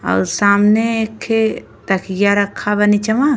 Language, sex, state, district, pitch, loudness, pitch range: Bhojpuri, female, Uttar Pradesh, Ghazipur, 205 Hz, -15 LUFS, 200-220 Hz